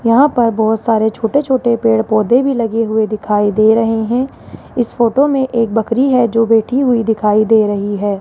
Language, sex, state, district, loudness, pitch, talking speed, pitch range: Hindi, female, Rajasthan, Jaipur, -13 LUFS, 225 Hz, 190 wpm, 220-245 Hz